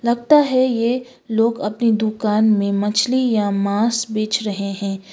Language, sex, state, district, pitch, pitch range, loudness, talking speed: Hindi, female, Sikkim, Gangtok, 220 Hz, 205-235 Hz, -18 LUFS, 150 wpm